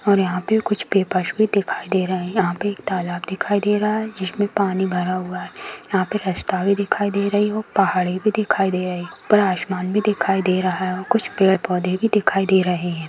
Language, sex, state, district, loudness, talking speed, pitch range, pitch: Hindi, female, Bihar, Jahanabad, -20 LUFS, 240 wpm, 185-205 Hz, 190 Hz